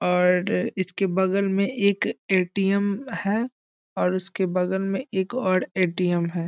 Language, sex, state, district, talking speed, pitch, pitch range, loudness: Hindi, male, Bihar, East Champaran, 140 wpm, 190 Hz, 180-200 Hz, -24 LUFS